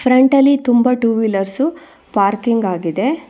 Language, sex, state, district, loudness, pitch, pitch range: Kannada, female, Karnataka, Bangalore, -15 LUFS, 245 Hz, 205-275 Hz